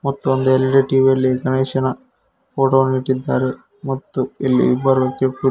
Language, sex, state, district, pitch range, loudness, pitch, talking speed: Kannada, male, Karnataka, Koppal, 130-135 Hz, -17 LUFS, 130 Hz, 140 wpm